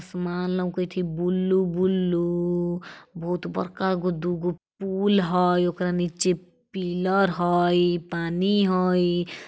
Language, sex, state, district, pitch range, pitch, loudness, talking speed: Bajjika, female, Bihar, Vaishali, 175-185 Hz, 180 Hz, -24 LUFS, 100 wpm